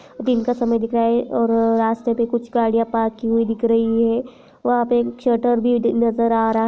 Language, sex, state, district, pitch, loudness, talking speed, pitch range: Hindi, female, Chhattisgarh, Raigarh, 230 Hz, -19 LUFS, 225 wpm, 230-240 Hz